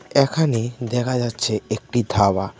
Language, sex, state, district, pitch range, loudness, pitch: Bengali, male, Tripura, West Tripura, 110-125 Hz, -21 LUFS, 120 Hz